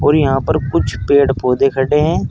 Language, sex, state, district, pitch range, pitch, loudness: Hindi, male, Uttar Pradesh, Saharanpur, 130-150 Hz, 135 Hz, -14 LUFS